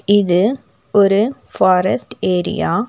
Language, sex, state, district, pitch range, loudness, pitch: Tamil, female, Tamil Nadu, Nilgiris, 185-205 Hz, -16 LUFS, 200 Hz